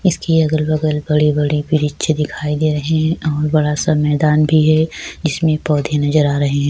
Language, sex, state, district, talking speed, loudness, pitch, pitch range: Urdu, female, Bihar, Saharsa, 205 wpm, -16 LUFS, 155 Hz, 150-155 Hz